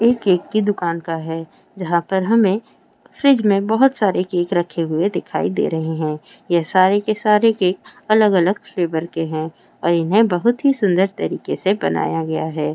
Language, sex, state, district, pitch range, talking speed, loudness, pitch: Hindi, female, Rajasthan, Churu, 165-215 Hz, 135 wpm, -18 LUFS, 185 Hz